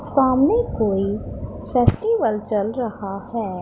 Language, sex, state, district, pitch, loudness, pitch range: Hindi, female, Punjab, Pathankot, 220 Hz, -21 LUFS, 200-260 Hz